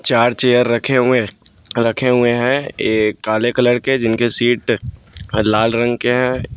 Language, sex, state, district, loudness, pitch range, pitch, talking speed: Hindi, male, Bihar, West Champaran, -16 LUFS, 110-125 Hz, 120 Hz, 155 wpm